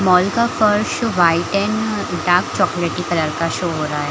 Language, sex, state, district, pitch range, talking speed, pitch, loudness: Hindi, female, Chhattisgarh, Bilaspur, 165-210 Hz, 190 wpm, 180 Hz, -18 LUFS